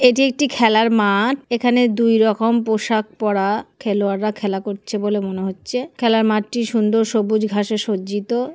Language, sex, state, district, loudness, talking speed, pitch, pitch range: Bengali, male, West Bengal, Kolkata, -18 LUFS, 145 wpm, 220 Hz, 205-235 Hz